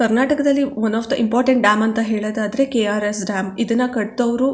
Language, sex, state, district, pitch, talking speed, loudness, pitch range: Kannada, female, Karnataka, Chamarajanagar, 230 Hz, 160 wpm, -18 LUFS, 215-260 Hz